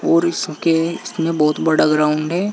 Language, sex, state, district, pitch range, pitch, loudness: Hindi, male, Uttar Pradesh, Saharanpur, 155-205 Hz, 165 Hz, -17 LUFS